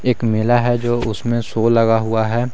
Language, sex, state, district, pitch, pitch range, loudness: Hindi, male, Jharkhand, Garhwa, 115 Hz, 110-120 Hz, -17 LUFS